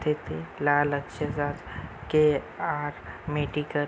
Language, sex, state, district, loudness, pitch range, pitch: Marathi, male, Maharashtra, Chandrapur, -28 LUFS, 140-150 Hz, 145 Hz